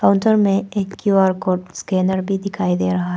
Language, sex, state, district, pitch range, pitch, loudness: Hindi, female, Arunachal Pradesh, Papum Pare, 180-195 Hz, 190 Hz, -18 LUFS